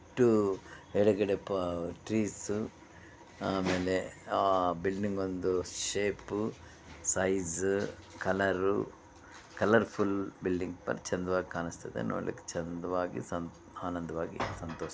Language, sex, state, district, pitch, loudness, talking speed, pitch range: Kannada, male, Karnataka, Bellary, 95 Hz, -33 LUFS, 90 wpm, 85-100 Hz